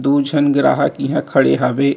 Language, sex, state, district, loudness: Chhattisgarhi, male, Chhattisgarh, Rajnandgaon, -15 LUFS